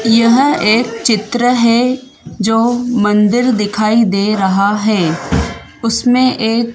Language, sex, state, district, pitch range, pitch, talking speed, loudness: Hindi, female, Madhya Pradesh, Dhar, 210-245 Hz, 230 Hz, 105 wpm, -13 LUFS